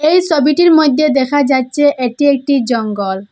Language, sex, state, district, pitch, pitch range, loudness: Bengali, female, Assam, Hailakandi, 285 Hz, 250-300 Hz, -12 LUFS